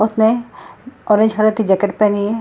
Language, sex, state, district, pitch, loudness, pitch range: Hindi, female, Bihar, Gaya, 215 Hz, -15 LUFS, 210-225 Hz